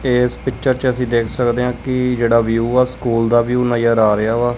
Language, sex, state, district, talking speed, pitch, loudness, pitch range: Punjabi, male, Punjab, Kapurthala, 225 wpm, 120 Hz, -16 LUFS, 115-125 Hz